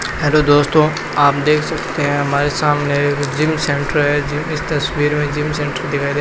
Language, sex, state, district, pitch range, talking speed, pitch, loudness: Hindi, male, Rajasthan, Bikaner, 145-150 Hz, 195 wpm, 145 Hz, -16 LUFS